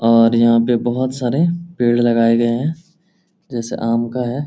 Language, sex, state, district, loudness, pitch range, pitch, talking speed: Hindi, male, Bihar, Lakhisarai, -16 LUFS, 115-160 Hz, 120 Hz, 175 wpm